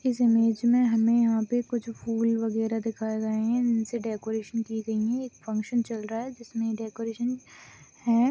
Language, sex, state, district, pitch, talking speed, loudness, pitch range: Hindi, female, Chhattisgarh, Balrampur, 230 Hz, 180 wpm, -27 LUFS, 225-235 Hz